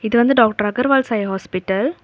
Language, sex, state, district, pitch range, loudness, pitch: Tamil, female, Tamil Nadu, Kanyakumari, 195-255 Hz, -17 LUFS, 220 Hz